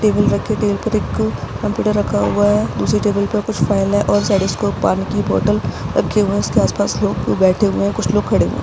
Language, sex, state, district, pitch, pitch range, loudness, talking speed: Hindi, female, Bihar, Araria, 205 Hz, 195-210 Hz, -17 LUFS, 255 wpm